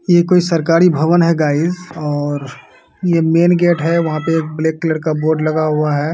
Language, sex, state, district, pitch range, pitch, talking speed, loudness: Hindi, male, Uttar Pradesh, Deoria, 155-170 Hz, 160 Hz, 205 wpm, -15 LUFS